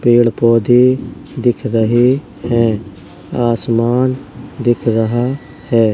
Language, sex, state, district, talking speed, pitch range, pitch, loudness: Hindi, male, Uttar Pradesh, Jalaun, 90 wpm, 115-125 Hz, 120 Hz, -14 LUFS